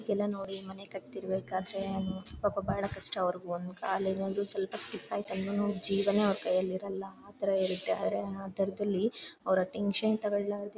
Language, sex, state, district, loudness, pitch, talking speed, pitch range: Kannada, female, Karnataka, Bellary, -32 LUFS, 195 Hz, 155 wpm, 190-205 Hz